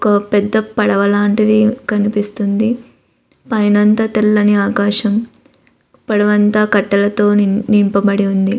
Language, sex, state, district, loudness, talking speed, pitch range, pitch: Telugu, female, Andhra Pradesh, Visakhapatnam, -14 LUFS, 100 wpm, 205-215 Hz, 210 Hz